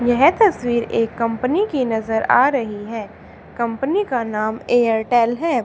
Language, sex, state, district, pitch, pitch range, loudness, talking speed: Hindi, female, Haryana, Charkhi Dadri, 235 Hz, 225-260 Hz, -19 LUFS, 150 wpm